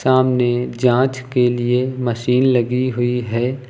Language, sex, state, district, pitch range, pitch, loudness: Hindi, male, Uttar Pradesh, Lucknow, 120-130 Hz, 125 Hz, -18 LUFS